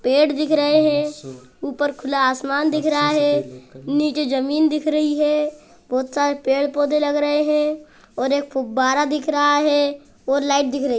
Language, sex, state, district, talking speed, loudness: Hindi, male, Bihar, Bhagalpur, 175 wpm, -19 LUFS